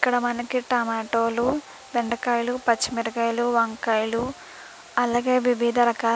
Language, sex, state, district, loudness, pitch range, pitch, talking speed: Telugu, female, Andhra Pradesh, Krishna, -24 LUFS, 230-245 Hz, 240 Hz, 95 wpm